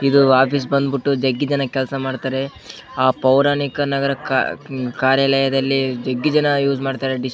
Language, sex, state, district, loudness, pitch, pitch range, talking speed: Kannada, male, Karnataka, Bellary, -18 LUFS, 135 Hz, 130-140 Hz, 145 wpm